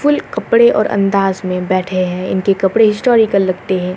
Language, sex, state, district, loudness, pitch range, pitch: Hindi, female, Uttarakhand, Uttarkashi, -14 LUFS, 185-220 Hz, 195 Hz